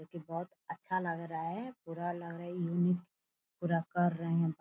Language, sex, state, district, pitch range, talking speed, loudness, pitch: Hindi, female, Bihar, Purnia, 165-175 Hz, 210 wpm, -36 LUFS, 170 Hz